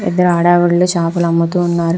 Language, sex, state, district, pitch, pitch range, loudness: Telugu, female, Andhra Pradesh, Visakhapatnam, 175 Hz, 170-175 Hz, -13 LUFS